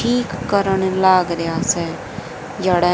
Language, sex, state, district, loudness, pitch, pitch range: Hindi, female, Haryana, Rohtak, -18 LUFS, 190 Hz, 175-200 Hz